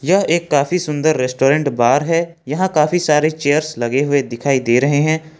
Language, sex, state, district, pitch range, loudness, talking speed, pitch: Hindi, male, Jharkhand, Ranchi, 140-160 Hz, -16 LUFS, 190 wpm, 150 Hz